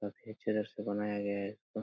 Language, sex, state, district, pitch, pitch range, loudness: Hindi, male, Bihar, Jamui, 105 Hz, 100-105 Hz, -37 LUFS